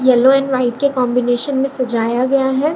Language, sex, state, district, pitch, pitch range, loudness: Hindi, female, Bihar, Lakhisarai, 260 Hz, 250-270 Hz, -15 LUFS